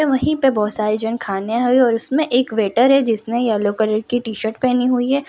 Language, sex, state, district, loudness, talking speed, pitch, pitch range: Hindi, female, Gujarat, Valsad, -17 LUFS, 240 wpm, 240 Hz, 220-260 Hz